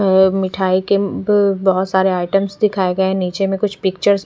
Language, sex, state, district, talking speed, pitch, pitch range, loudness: Hindi, female, Chandigarh, Chandigarh, 225 wpm, 190 Hz, 190-200 Hz, -16 LUFS